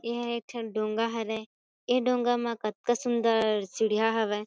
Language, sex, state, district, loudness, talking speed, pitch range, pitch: Chhattisgarhi, female, Chhattisgarh, Kabirdham, -28 LUFS, 160 wpm, 220-240 Hz, 230 Hz